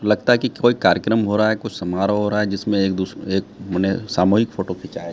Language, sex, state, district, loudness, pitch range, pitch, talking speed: Hindi, male, Bihar, Katihar, -20 LUFS, 95-110 Hz, 100 Hz, 245 wpm